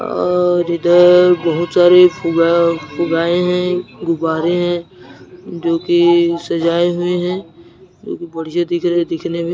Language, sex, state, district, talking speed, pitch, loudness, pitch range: Hindi, male, Chhattisgarh, Narayanpur, 145 wpm, 175 Hz, -14 LUFS, 170-175 Hz